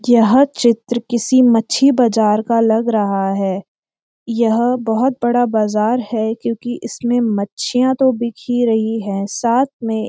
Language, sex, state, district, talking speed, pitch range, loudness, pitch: Hindi, female, Uttarakhand, Uttarkashi, 150 wpm, 220-245 Hz, -16 LUFS, 235 Hz